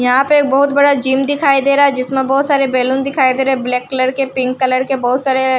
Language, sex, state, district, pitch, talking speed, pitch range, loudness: Hindi, female, Bihar, Patna, 265 Hz, 255 wpm, 255-275 Hz, -13 LUFS